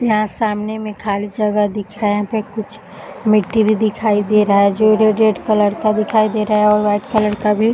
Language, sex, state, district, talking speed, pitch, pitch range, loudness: Hindi, female, Bihar, Jahanabad, 250 wpm, 215 Hz, 210-215 Hz, -16 LUFS